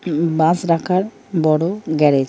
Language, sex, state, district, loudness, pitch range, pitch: Bengali, male, Jharkhand, Jamtara, -18 LUFS, 155-180 Hz, 165 Hz